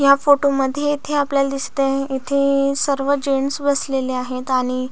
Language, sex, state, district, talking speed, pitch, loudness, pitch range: Marathi, female, Maharashtra, Solapur, 160 wpm, 275 Hz, -19 LUFS, 270-280 Hz